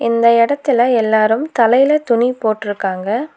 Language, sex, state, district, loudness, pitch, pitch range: Tamil, female, Tamil Nadu, Nilgiris, -14 LUFS, 230 Hz, 220-255 Hz